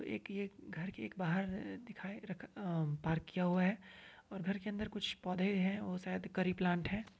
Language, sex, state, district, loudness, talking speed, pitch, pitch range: Hindi, female, Uttar Pradesh, Varanasi, -39 LUFS, 215 wpm, 190 Hz, 180-200 Hz